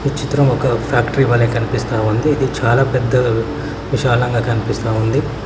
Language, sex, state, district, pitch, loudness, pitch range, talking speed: Telugu, male, Telangana, Mahabubabad, 120 Hz, -16 LUFS, 115-135 Hz, 145 wpm